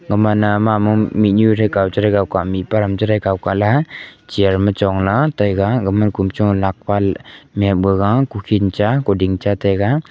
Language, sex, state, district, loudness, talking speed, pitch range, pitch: Wancho, male, Arunachal Pradesh, Longding, -16 LUFS, 125 wpm, 95-105 Hz, 100 Hz